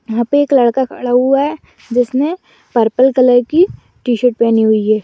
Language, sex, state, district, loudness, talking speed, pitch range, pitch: Bhojpuri, female, Uttar Pradesh, Gorakhpur, -13 LUFS, 180 wpm, 235-270 Hz, 250 Hz